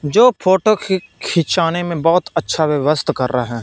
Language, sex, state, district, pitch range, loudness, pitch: Hindi, male, Punjab, Fazilka, 150-190 Hz, -16 LUFS, 165 Hz